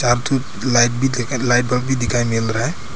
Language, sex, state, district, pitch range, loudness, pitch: Hindi, male, Arunachal Pradesh, Papum Pare, 120-130 Hz, -18 LUFS, 120 Hz